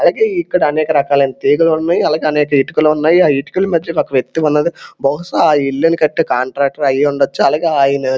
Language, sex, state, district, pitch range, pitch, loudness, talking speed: Telugu, male, Andhra Pradesh, Srikakulam, 140-165 Hz, 150 Hz, -14 LUFS, 170 wpm